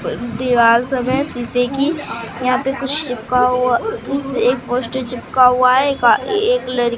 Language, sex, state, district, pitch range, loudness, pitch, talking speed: Hindi, female, Bihar, Katihar, 245-270 Hz, -17 LUFS, 255 Hz, 170 wpm